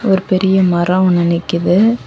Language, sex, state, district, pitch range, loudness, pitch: Tamil, female, Tamil Nadu, Kanyakumari, 175-190 Hz, -13 LUFS, 185 Hz